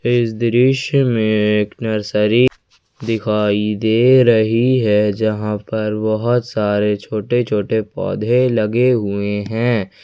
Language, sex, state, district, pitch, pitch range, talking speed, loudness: Hindi, male, Jharkhand, Ranchi, 110 Hz, 105-120 Hz, 115 wpm, -16 LUFS